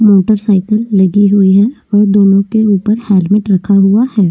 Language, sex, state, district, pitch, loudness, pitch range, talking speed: Hindi, female, Uttarakhand, Tehri Garhwal, 205 Hz, -10 LUFS, 195-215 Hz, 180 wpm